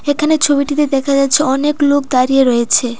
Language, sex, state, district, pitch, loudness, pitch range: Bengali, female, Tripura, Dhalai, 280 Hz, -13 LUFS, 265-290 Hz